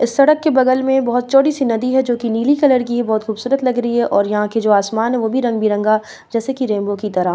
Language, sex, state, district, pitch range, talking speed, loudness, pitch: Hindi, female, Bihar, Vaishali, 215-260 Hz, 275 wpm, -16 LUFS, 240 Hz